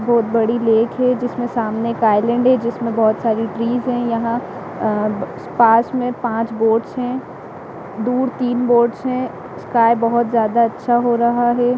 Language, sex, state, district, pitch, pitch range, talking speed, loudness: Hindi, female, Jharkhand, Jamtara, 235 Hz, 225-245 Hz, 165 wpm, -17 LUFS